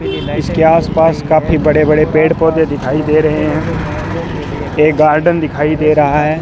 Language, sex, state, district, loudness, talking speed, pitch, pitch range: Hindi, male, Rajasthan, Bikaner, -12 LUFS, 170 wpm, 155 Hz, 150-160 Hz